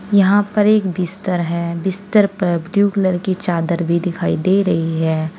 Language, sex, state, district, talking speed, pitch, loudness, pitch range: Hindi, female, Uttar Pradesh, Saharanpur, 180 wpm, 185 Hz, -17 LUFS, 170-200 Hz